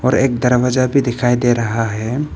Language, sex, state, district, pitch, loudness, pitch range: Hindi, male, Arunachal Pradesh, Papum Pare, 125 Hz, -16 LUFS, 120-130 Hz